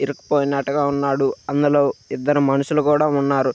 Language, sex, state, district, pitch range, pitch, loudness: Telugu, male, Andhra Pradesh, Krishna, 140-145 Hz, 140 Hz, -19 LUFS